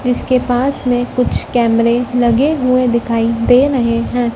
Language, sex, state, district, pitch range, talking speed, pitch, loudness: Hindi, female, Madhya Pradesh, Dhar, 235-255 Hz, 150 wpm, 245 Hz, -14 LUFS